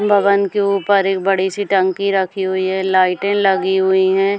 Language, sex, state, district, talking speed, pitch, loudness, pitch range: Hindi, female, Chhattisgarh, Bastar, 190 wpm, 195 Hz, -16 LUFS, 190-200 Hz